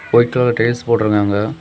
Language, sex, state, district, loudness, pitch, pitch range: Tamil, male, Tamil Nadu, Kanyakumari, -15 LUFS, 115 Hz, 105-120 Hz